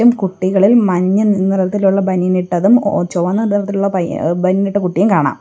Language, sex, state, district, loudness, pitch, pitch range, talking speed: Malayalam, female, Kerala, Kollam, -14 LUFS, 195 Hz, 185-205 Hz, 145 wpm